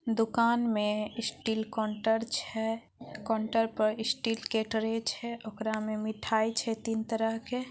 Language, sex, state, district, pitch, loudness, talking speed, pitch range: Maithili, female, Bihar, Samastipur, 225 Hz, -31 LUFS, 140 wpm, 220-230 Hz